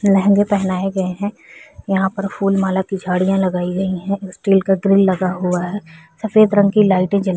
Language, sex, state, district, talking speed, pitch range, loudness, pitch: Hindi, female, Bihar, Vaishali, 205 wpm, 185-200 Hz, -17 LUFS, 195 Hz